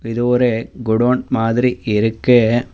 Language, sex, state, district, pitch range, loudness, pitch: Tamil, male, Tamil Nadu, Namakkal, 115-125 Hz, -16 LUFS, 120 Hz